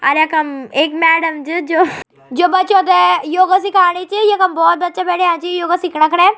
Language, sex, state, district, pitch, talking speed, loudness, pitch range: Garhwali, female, Uttarakhand, Tehri Garhwal, 350 Hz, 190 wpm, -13 LUFS, 315-370 Hz